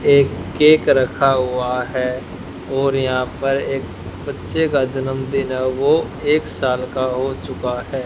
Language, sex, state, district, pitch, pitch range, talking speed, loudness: Hindi, male, Haryana, Charkhi Dadri, 130 Hz, 125-135 Hz, 150 wpm, -18 LUFS